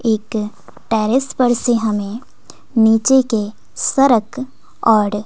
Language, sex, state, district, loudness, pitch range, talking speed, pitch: Hindi, female, Bihar, West Champaran, -16 LUFS, 215-255 Hz, 105 wpm, 225 Hz